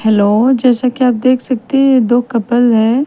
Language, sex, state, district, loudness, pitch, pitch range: Hindi, female, Bihar, Patna, -12 LUFS, 245 Hz, 230-255 Hz